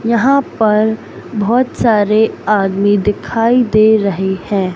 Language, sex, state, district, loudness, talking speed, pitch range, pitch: Hindi, male, Madhya Pradesh, Katni, -13 LUFS, 115 wpm, 205-230 Hz, 215 Hz